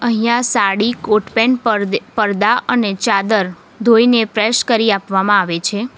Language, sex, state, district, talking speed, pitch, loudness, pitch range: Gujarati, female, Gujarat, Valsad, 130 wpm, 220 Hz, -15 LUFS, 205-235 Hz